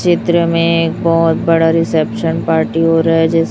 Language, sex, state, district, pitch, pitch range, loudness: Hindi, male, Chhattisgarh, Raipur, 165 Hz, 165-170 Hz, -13 LUFS